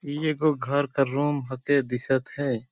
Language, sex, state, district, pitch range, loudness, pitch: Sadri, male, Chhattisgarh, Jashpur, 130-145 Hz, -26 LUFS, 140 Hz